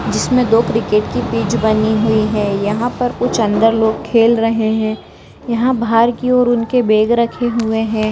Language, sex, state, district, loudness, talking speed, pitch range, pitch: Hindi, female, Bihar, Saran, -15 LUFS, 185 wpm, 220-235 Hz, 225 Hz